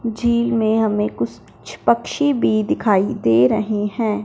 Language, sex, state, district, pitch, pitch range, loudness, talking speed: Hindi, male, Punjab, Fazilka, 215 Hz, 205-230 Hz, -18 LUFS, 140 wpm